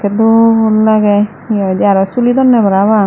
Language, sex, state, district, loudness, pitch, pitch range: Chakma, female, Tripura, Dhalai, -10 LUFS, 215 Hz, 200-225 Hz